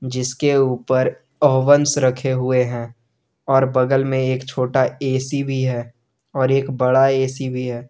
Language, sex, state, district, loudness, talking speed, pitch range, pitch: Hindi, male, Jharkhand, Garhwa, -18 LUFS, 165 wpm, 125-135 Hz, 130 Hz